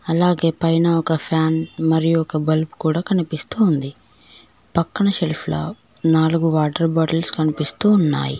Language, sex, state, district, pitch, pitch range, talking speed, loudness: Telugu, female, Telangana, Mahabubabad, 160 Hz, 155-165 Hz, 130 wpm, -19 LUFS